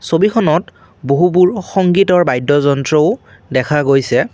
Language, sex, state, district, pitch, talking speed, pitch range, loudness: Assamese, male, Assam, Kamrup Metropolitan, 150 Hz, 95 wpm, 135-180 Hz, -13 LUFS